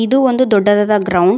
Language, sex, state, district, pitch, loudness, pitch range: Kannada, female, Karnataka, Koppal, 210 Hz, -13 LUFS, 200-250 Hz